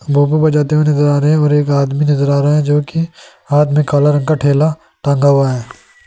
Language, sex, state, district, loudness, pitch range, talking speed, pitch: Hindi, male, Rajasthan, Jaipur, -13 LUFS, 145-150 Hz, 245 wpm, 145 Hz